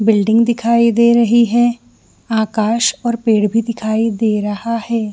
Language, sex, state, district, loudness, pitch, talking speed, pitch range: Hindi, female, Jharkhand, Jamtara, -15 LUFS, 230 Hz, 150 wpm, 215-235 Hz